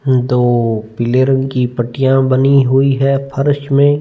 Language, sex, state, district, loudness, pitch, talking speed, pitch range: Hindi, male, Punjab, Fazilka, -13 LUFS, 130 Hz, 135 wpm, 125-135 Hz